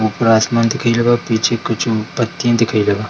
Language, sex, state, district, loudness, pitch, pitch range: Hindi, male, Bihar, Darbhanga, -15 LUFS, 115 Hz, 110-120 Hz